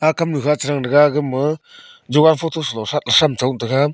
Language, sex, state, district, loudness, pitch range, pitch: Wancho, male, Arunachal Pradesh, Longding, -17 LUFS, 135-160 Hz, 150 Hz